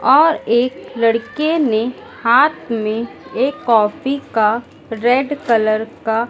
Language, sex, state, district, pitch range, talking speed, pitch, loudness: Hindi, female, Madhya Pradesh, Dhar, 225-275 Hz, 115 wpm, 235 Hz, -17 LUFS